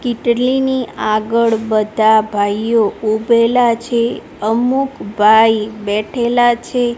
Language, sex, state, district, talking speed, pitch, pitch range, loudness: Gujarati, female, Gujarat, Gandhinagar, 85 wpm, 230 Hz, 215-240 Hz, -15 LUFS